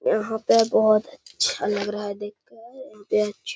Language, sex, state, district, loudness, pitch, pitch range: Hindi, male, Bihar, Gaya, -22 LUFS, 215 Hz, 205-225 Hz